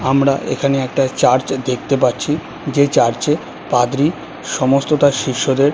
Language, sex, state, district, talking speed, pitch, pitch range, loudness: Bengali, male, West Bengal, Kolkata, 135 wpm, 135 Hz, 130-145 Hz, -16 LUFS